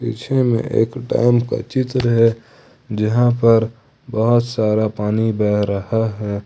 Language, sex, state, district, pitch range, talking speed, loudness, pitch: Hindi, male, Jharkhand, Ranchi, 110-120 Hz, 140 wpm, -18 LUFS, 115 Hz